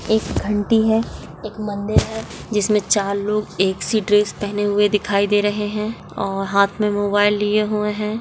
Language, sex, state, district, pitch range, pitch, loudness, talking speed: Hindi, female, Rajasthan, Nagaur, 205-210 Hz, 210 Hz, -19 LUFS, 185 wpm